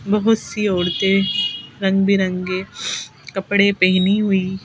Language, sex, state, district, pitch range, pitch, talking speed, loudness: Hindi, female, Madhya Pradesh, Bhopal, 185-200 Hz, 195 Hz, 105 wpm, -18 LUFS